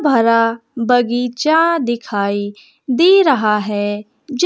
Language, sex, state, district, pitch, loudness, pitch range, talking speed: Hindi, female, Bihar, West Champaran, 235 Hz, -15 LUFS, 210-280 Hz, 95 wpm